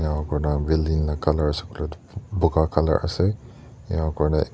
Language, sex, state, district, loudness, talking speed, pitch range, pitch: Nagamese, male, Nagaland, Dimapur, -24 LUFS, 160 wpm, 75-95 Hz, 80 Hz